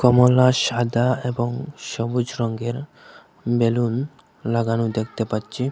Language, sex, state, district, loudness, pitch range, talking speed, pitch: Bengali, male, Assam, Hailakandi, -21 LUFS, 115-125 Hz, 95 wpm, 120 Hz